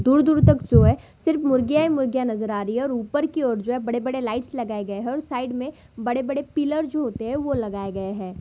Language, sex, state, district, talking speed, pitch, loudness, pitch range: Hindi, female, Bihar, Sitamarhi, 250 wpm, 255 Hz, -23 LUFS, 225-285 Hz